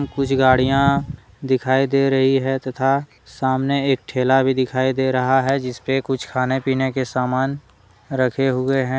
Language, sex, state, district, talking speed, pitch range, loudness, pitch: Hindi, male, Jharkhand, Deoghar, 160 wpm, 130-135 Hz, -19 LUFS, 130 Hz